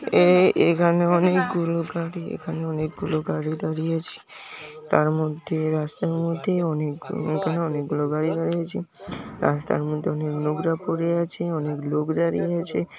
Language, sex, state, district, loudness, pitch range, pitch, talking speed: Bengali, male, West Bengal, Paschim Medinipur, -24 LUFS, 155-170 Hz, 160 Hz, 145 wpm